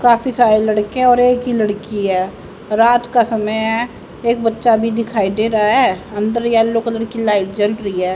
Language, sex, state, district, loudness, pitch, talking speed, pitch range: Hindi, female, Haryana, Jhajjar, -16 LUFS, 225 Hz, 200 wpm, 210-235 Hz